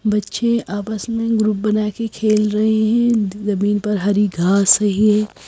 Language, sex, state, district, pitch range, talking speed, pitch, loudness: Hindi, female, Madhya Pradesh, Bhopal, 205-220 Hz, 165 wpm, 210 Hz, -17 LUFS